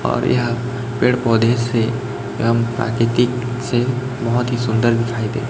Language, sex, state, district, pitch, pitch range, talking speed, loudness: Hindi, male, Chhattisgarh, Raipur, 120 Hz, 115-125 Hz, 140 wpm, -18 LUFS